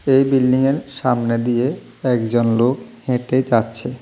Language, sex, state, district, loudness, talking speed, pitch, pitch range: Bengali, male, Tripura, South Tripura, -18 LUFS, 120 wpm, 125 Hz, 120-135 Hz